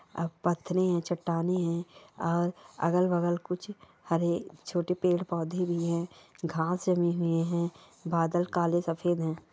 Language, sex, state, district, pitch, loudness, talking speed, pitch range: Hindi, female, Chhattisgarh, Kabirdham, 175 Hz, -30 LUFS, 130 wpm, 170-180 Hz